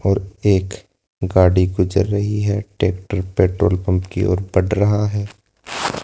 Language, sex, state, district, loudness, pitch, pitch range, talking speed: Hindi, male, Rajasthan, Jaipur, -18 LUFS, 95 Hz, 90-105 Hz, 140 wpm